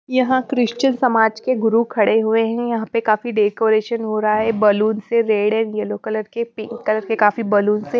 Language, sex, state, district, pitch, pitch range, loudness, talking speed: Hindi, female, Bihar, Katihar, 225 Hz, 215-235 Hz, -18 LUFS, 210 wpm